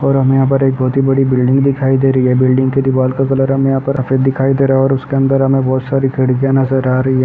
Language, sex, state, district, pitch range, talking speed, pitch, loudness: Hindi, male, Uttar Pradesh, Ghazipur, 130-135 Hz, 305 wpm, 135 Hz, -13 LUFS